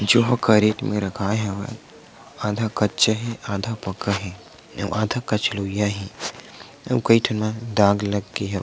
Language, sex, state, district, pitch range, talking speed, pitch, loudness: Chhattisgarhi, male, Chhattisgarh, Sukma, 100-110 Hz, 165 wpm, 105 Hz, -22 LUFS